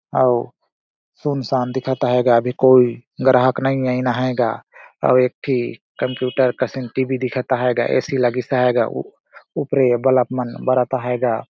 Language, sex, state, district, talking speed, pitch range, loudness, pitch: Surgujia, male, Chhattisgarh, Sarguja, 170 wpm, 125-130 Hz, -18 LUFS, 125 Hz